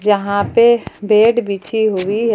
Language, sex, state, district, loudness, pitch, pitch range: Hindi, female, Jharkhand, Palamu, -15 LUFS, 210 Hz, 200-230 Hz